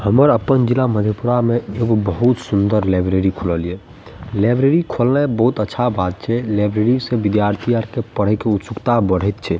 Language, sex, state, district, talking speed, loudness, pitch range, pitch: Maithili, male, Bihar, Madhepura, 170 wpm, -17 LUFS, 100-120 Hz, 110 Hz